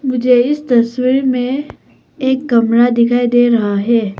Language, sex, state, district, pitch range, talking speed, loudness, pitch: Hindi, female, Arunachal Pradesh, Papum Pare, 235-260 Hz, 145 wpm, -13 LUFS, 245 Hz